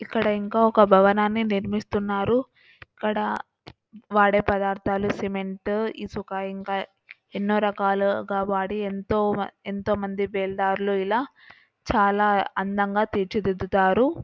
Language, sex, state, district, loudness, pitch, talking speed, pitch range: Telugu, female, Andhra Pradesh, Anantapur, -24 LUFS, 200 Hz, 150 wpm, 195-210 Hz